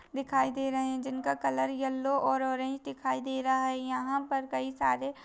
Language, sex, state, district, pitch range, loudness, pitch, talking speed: Hindi, female, Uttarakhand, Tehri Garhwal, 255-270 Hz, -31 LUFS, 265 Hz, 205 wpm